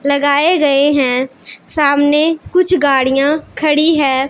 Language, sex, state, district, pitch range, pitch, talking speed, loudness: Hindi, female, Punjab, Pathankot, 275-310 Hz, 285 Hz, 110 wpm, -13 LUFS